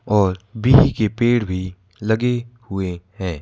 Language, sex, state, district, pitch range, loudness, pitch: Hindi, male, Madhya Pradesh, Bhopal, 95-120 Hz, -19 LUFS, 105 Hz